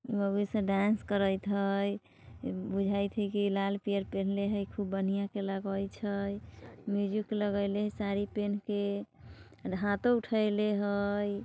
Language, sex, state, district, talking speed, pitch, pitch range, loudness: Bajjika, female, Bihar, Vaishali, 145 wpm, 200 Hz, 195-205 Hz, -32 LUFS